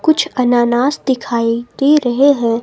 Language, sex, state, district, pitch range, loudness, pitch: Hindi, female, Himachal Pradesh, Shimla, 240-285 Hz, -14 LUFS, 250 Hz